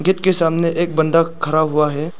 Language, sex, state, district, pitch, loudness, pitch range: Hindi, male, Arunachal Pradesh, Lower Dibang Valley, 165 Hz, -16 LUFS, 155-170 Hz